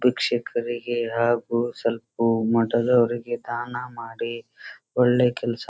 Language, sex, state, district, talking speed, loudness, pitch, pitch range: Kannada, male, Karnataka, Dharwad, 105 wpm, -24 LUFS, 120 Hz, 115-120 Hz